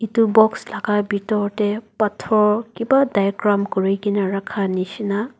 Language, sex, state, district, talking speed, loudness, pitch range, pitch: Nagamese, female, Nagaland, Dimapur, 135 wpm, -20 LUFS, 200-220 Hz, 210 Hz